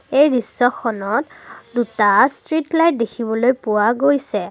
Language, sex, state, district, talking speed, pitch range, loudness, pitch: Assamese, female, Assam, Kamrup Metropolitan, 105 wpm, 225-285 Hz, -18 LUFS, 245 Hz